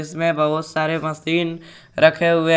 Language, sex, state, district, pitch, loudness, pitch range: Hindi, male, Jharkhand, Garhwa, 160 Hz, -19 LUFS, 155-165 Hz